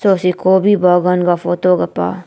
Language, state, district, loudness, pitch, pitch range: Nyishi, Arunachal Pradesh, Papum Pare, -14 LUFS, 180 Hz, 180-190 Hz